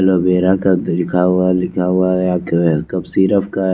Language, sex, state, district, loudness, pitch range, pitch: Hindi, male, Chandigarh, Chandigarh, -15 LUFS, 90-95 Hz, 90 Hz